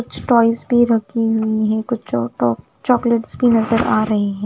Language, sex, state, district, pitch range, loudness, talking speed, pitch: Hindi, female, Punjab, Fazilka, 215-235 Hz, -17 LUFS, 175 wpm, 225 Hz